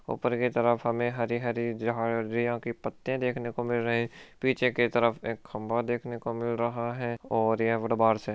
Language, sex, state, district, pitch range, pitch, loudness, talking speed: Hindi, male, Rajasthan, Churu, 115-120 Hz, 120 Hz, -29 LUFS, 210 wpm